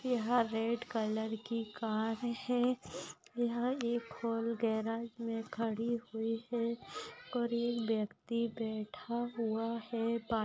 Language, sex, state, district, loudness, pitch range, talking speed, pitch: Hindi, female, Maharashtra, Nagpur, -37 LUFS, 225-240 Hz, 120 wpm, 230 Hz